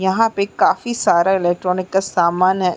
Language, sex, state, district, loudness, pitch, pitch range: Hindi, female, Uttarakhand, Uttarkashi, -17 LUFS, 190 Hz, 180-200 Hz